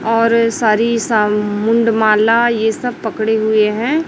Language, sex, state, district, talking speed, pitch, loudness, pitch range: Hindi, female, Chhattisgarh, Raipur, 145 wpm, 225 Hz, -14 LUFS, 215-230 Hz